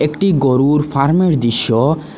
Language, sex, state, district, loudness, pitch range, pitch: Bengali, male, Assam, Hailakandi, -14 LUFS, 135-160 Hz, 145 Hz